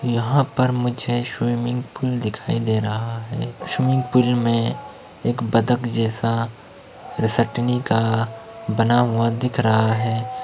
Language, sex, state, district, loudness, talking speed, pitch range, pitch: Hindi, male, Uttar Pradesh, Etah, -21 LUFS, 125 wpm, 115-125 Hz, 115 Hz